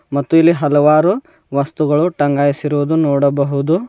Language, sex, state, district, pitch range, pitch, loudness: Kannada, male, Karnataka, Bidar, 140-165 Hz, 150 Hz, -15 LUFS